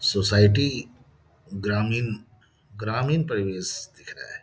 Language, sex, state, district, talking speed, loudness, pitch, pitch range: Hindi, male, Bihar, Samastipur, 110 wpm, -24 LUFS, 105 Hz, 105-120 Hz